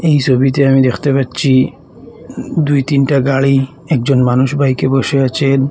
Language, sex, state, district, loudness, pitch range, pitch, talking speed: Bengali, male, Assam, Hailakandi, -13 LUFS, 130-140 Hz, 135 Hz, 145 wpm